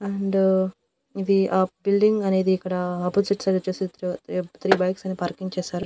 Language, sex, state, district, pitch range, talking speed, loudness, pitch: Telugu, female, Andhra Pradesh, Annamaya, 185-195 Hz, 155 wpm, -23 LUFS, 190 Hz